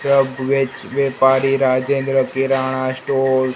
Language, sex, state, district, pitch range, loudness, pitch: Hindi, male, Gujarat, Gandhinagar, 130-135 Hz, -18 LUFS, 135 Hz